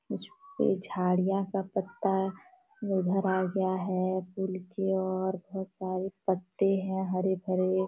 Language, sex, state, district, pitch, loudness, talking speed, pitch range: Hindi, female, Jharkhand, Sahebganj, 190 Hz, -31 LUFS, 120 wpm, 185-195 Hz